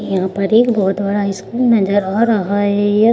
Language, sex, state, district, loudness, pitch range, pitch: Hindi, female, Bihar, Gaya, -15 LUFS, 195-225 Hz, 205 Hz